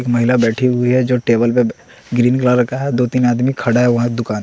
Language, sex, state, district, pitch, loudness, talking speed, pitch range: Hindi, male, Bihar, West Champaran, 125 Hz, -15 LUFS, 245 wpm, 120-125 Hz